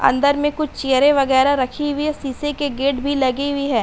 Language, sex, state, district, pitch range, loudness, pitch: Hindi, female, Uttar Pradesh, Hamirpur, 270-290 Hz, -18 LUFS, 280 Hz